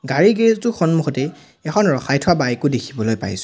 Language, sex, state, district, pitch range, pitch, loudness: Assamese, male, Assam, Sonitpur, 130-180 Hz, 145 Hz, -18 LUFS